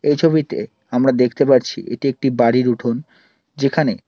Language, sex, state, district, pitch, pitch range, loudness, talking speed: Bengali, male, West Bengal, Alipurduar, 130 Hz, 125-145 Hz, -18 LUFS, 145 wpm